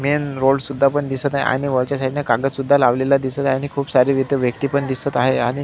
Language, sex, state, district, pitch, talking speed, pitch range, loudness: Marathi, male, Maharashtra, Solapur, 135 Hz, 265 wpm, 130-140 Hz, -18 LUFS